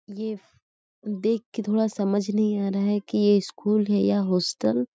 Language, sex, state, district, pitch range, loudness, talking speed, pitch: Hindi, female, Chhattisgarh, Sarguja, 200-215 Hz, -24 LUFS, 195 wpm, 205 Hz